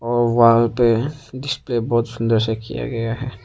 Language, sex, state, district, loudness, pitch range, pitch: Hindi, male, Arunachal Pradesh, Papum Pare, -19 LUFS, 115-125 Hz, 115 Hz